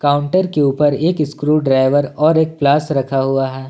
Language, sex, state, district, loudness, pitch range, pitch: Hindi, male, Jharkhand, Ranchi, -15 LUFS, 135-155 Hz, 145 Hz